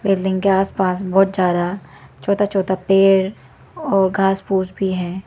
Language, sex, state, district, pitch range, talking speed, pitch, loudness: Hindi, female, Arunachal Pradesh, Lower Dibang Valley, 185-195 Hz, 150 wpm, 190 Hz, -18 LUFS